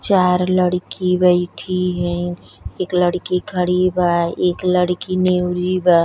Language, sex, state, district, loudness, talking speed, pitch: Bhojpuri, female, Uttar Pradesh, Deoria, -18 LUFS, 120 wpm, 180 Hz